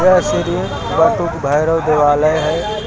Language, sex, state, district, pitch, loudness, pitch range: Hindi, male, Uttar Pradesh, Lucknow, 155 Hz, -15 LUFS, 150-170 Hz